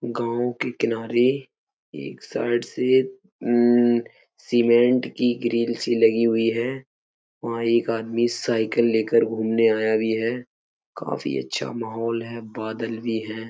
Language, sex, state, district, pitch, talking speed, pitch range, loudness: Hindi, male, Uttar Pradesh, Etah, 115 Hz, 135 wpm, 115-120 Hz, -22 LUFS